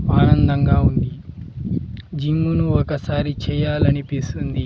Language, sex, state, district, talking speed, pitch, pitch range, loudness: Telugu, male, Andhra Pradesh, Sri Satya Sai, 65 wpm, 145 Hz, 135-150 Hz, -19 LUFS